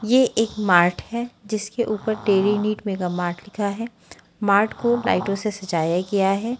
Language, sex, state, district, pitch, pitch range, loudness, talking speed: Hindi, female, Haryana, Charkhi Dadri, 210 Hz, 195-225 Hz, -22 LUFS, 175 wpm